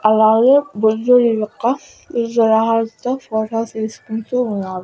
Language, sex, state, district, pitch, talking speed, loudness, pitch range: Telugu, female, Andhra Pradesh, Annamaya, 225 Hz, 85 wpm, -17 LUFS, 220-245 Hz